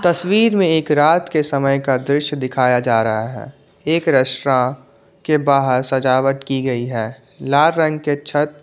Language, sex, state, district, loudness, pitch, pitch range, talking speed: Hindi, male, Jharkhand, Ranchi, -17 LUFS, 140 Hz, 130-155 Hz, 165 wpm